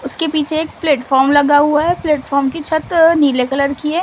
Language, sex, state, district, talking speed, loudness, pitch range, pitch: Hindi, female, Maharashtra, Gondia, 210 wpm, -14 LUFS, 280-315 Hz, 295 Hz